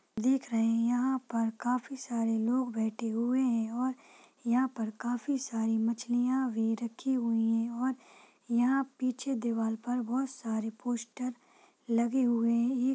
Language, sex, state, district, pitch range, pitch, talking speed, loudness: Hindi, female, Bihar, Saharsa, 230-255 Hz, 240 Hz, 135 wpm, -31 LUFS